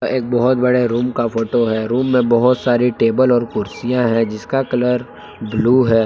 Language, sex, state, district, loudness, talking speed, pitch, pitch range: Hindi, male, Jharkhand, Palamu, -16 LUFS, 190 wpm, 120 Hz, 115-125 Hz